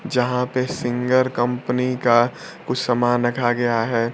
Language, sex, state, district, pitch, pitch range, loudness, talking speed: Hindi, male, Bihar, Kaimur, 125 Hz, 120-125 Hz, -20 LUFS, 145 wpm